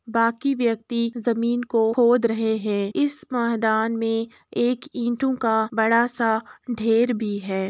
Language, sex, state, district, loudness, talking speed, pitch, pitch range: Hindi, female, Uttar Pradesh, Jalaun, -22 LUFS, 140 wpm, 230 Hz, 225-240 Hz